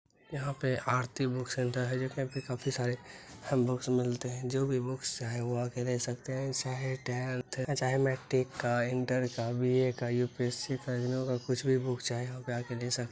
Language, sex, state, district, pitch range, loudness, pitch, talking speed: Hindi, male, Bihar, Saharsa, 125-130 Hz, -33 LUFS, 125 Hz, 220 wpm